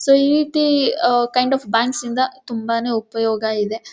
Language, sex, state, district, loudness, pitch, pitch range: Kannada, female, Karnataka, Mysore, -18 LUFS, 240 Hz, 225-270 Hz